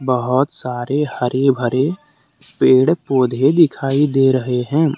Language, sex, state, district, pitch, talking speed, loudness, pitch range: Hindi, male, Jharkhand, Deoghar, 135 Hz, 120 wpm, -16 LUFS, 125-145 Hz